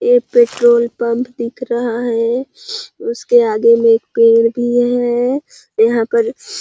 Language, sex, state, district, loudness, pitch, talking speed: Hindi, female, Chhattisgarh, Sarguja, -14 LUFS, 245 Hz, 145 wpm